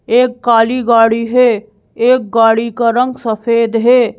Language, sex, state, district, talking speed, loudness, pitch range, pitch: Hindi, female, Madhya Pradesh, Bhopal, 145 wpm, -12 LUFS, 225-245 Hz, 230 Hz